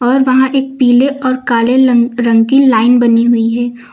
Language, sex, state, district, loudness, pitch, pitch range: Hindi, female, Uttar Pradesh, Lucknow, -10 LUFS, 245 Hz, 235-260 Hz